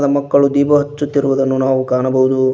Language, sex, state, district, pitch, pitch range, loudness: Kannada, male, Karnataka, Koppal, 135 Hz, 130-140 Hz, -14 LUFS